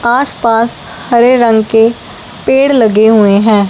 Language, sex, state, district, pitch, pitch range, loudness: Hindi, male, Punjab, Fazilka, 230 Hz, 220-240 Hz, -9 LUFS